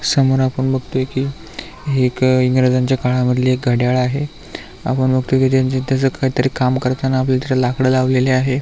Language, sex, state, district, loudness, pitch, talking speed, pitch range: Marathi, male, Maharashtra, Aurangabad, -17 LUFS, 130 Hz, 180 wpm, 125-130 Hz